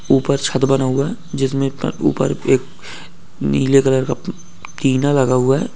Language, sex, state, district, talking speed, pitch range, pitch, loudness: Hindi, male, Uttar Pradesh, Budaun, 155 wpm, 130-140 Hz, 135 Hz, -17 LUFS